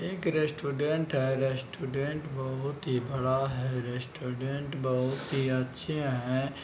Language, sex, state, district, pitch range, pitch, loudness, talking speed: Hindi, male, Bihar, Araria, 130-145 Hz, 135 Hz, -31 LUFS, 120 wpm